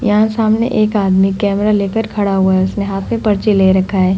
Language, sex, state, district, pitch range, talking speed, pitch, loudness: Hindi, female, Uttar Pradesh, Hamirpur, 195-215 Hz, 230 wpm, 205 Hz, -14 LUFS